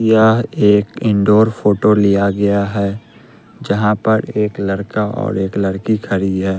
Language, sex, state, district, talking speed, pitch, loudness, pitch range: Hindi, male, Bihar, West Champaran, 145 wpm, 105 Hz, -15 LUFS, 100-110 Hz